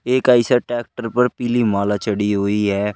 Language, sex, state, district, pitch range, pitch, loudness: Hindi, male, Uttar Pradesh, Shamli, 105-120 Hz, 115 Hz, -18 LUFS